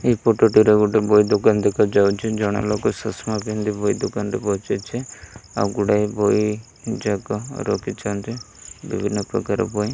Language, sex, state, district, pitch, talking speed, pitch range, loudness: Odia, male, Odisha, Malkangiri, 105 Hz, 150 wpm, 105-110 Hz, -20 LUFS